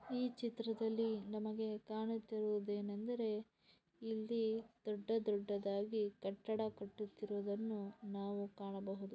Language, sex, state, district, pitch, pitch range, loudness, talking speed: Kannada, female, Karnataka, Mysore, 215 Hz, 200-225 Hz, -43 LUFS, 85 wpm